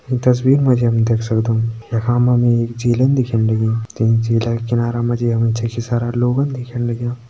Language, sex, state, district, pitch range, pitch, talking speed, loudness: Hindi, male, Uttarakhand, Tehri Garhwal, 115-120 Hz, 120 Hz, 205 wpm, -17 LUFS